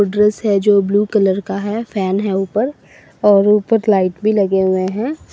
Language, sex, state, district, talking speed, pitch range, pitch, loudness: Hindi, female, Assam, Sonitpur, 190 wpm, 195-210 Hz, 205 Hz, -15 LUFS